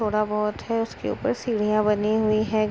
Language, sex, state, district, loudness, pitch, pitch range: Hindi, female, Uttar Pradesh, Etah, -24 LUFS, 215 Hz, 210-220 Hz